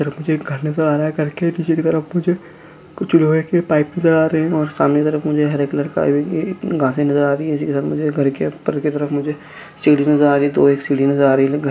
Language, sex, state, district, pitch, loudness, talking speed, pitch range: Hindi, male, Chhattisgarh, Bastar, 150 Hz, -17 LUFS, 300 wpm, 145-160 Hz